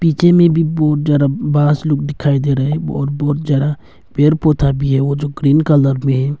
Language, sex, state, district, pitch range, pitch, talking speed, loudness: Hindi, male, Arunachal Pradesh, Longding, 140-150 Hz, 145 Hz, 225 wpm, -14 LUFS